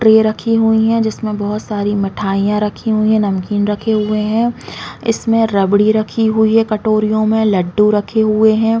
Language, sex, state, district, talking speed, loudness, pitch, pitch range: Hindi, female, Chhattisgarh, Raigarh, 175 wpm, -14 LUFS, 215 Hz, 210-220 Hz